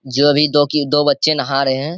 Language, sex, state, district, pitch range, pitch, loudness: Hindi, male, Bihar, Saharsa, 140-150 Hz, 145 Hz, -15 LUFS